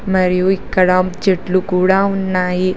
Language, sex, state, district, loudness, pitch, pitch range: Telugu, female, Telangana, Hyderabad, -15 LUFS, 185 Hz, 185-190 Hz